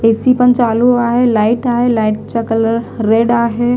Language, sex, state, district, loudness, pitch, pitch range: Marathi, female, Maharashtra, Gondia, -13 LUFS, 235 Hz, 225-245 Hz